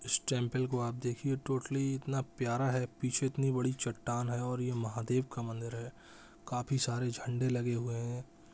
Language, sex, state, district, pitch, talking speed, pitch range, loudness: Hindi, male, Bihar, Saran, 125 Hz, 190 wpm, 120-130 Hz, -35 LUFS